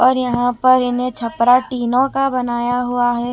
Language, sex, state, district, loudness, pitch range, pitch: Hindi, female, Chhattisgarh, Raipur, -16 LUFS, 240-255 Hz, 245 Hz